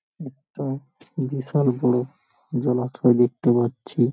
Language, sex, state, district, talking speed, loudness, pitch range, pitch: Bengali, male, West Bengal, Paschim Medinipur, 100 wpm, -23 LUFS, 125-135 Hz, 130 Hz